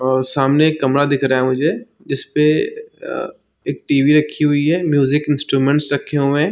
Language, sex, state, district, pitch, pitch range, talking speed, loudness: Hindi, male, Chhattisgarh, Raigarh, 145 Hz, 140-155 Hz, 185 wpm, -17 LUFS